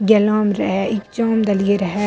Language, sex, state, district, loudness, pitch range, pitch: Maithili, female, Bihar, Madhepura, -18 LUFS, 200-215 Hz, 205 Hz